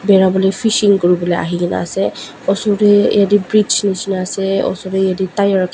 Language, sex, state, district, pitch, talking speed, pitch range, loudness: Nagamese, female, Nagaland, Dimapur, 195 Hz, 165 wpm, 185-205 Hz, -15 LUFS